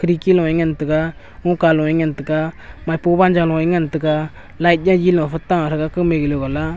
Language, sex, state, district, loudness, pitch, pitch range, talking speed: Wancho, male, Arunachal Pradesh, Longding, -17 LUFS, 165 Hz, 155-175 Hz, 185 wpm